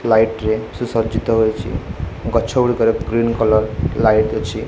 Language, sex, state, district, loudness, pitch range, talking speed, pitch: Odia, male, Odisha, Khordha, -18 LUFS, 110-115 Hz, 140 wpm, 110 Hz